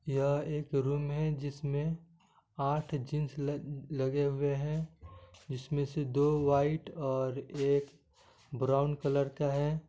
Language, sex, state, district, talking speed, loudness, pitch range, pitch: Hindi, male, Bihar, Gaya, 125 wpm, -33 LUFS, 140-150 Hz, 145 Hz